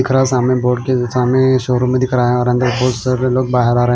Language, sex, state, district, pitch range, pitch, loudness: Hindi, male, Himachal Pradesh, Shimla, 125-130 Hz, 125 Hz, -15 LUFS